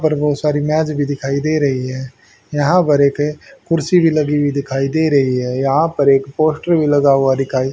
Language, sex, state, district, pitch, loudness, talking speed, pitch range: Hindi, male, Haryana, Rohtak, 145 Hz, -16 LUFS, 215 wpm, 135-155 Hz